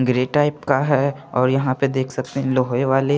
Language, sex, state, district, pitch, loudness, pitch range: Hindi, male, Chandigarh, Chandigarh, 135 Hz, -20 LUFS, 130-140 Hz